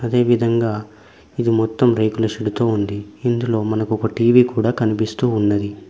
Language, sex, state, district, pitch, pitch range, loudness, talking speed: Telugu, male, Telangana, Mahabubabad, 110 Hz, 105-120 Hz, -18 LUFS, 140 wpm